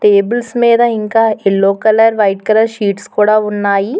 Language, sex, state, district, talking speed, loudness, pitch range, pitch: Telugu, female, Telangana, Hyderabad, 150 wpm, -12 LUFS, 200-225 Hz, 215 Hz